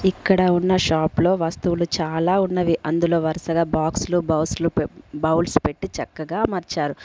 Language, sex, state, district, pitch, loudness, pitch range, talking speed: Telugu, female, Telangana, Komaram Bheem, 170 Hz, -21 LUFS, 160-180 Hz, 135 wpm